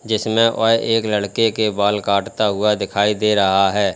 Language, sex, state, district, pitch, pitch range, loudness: Hindi, male, Uttar Pradesh, Lalitpur, 105 Hz, 100-110 Hz, -17 LUFS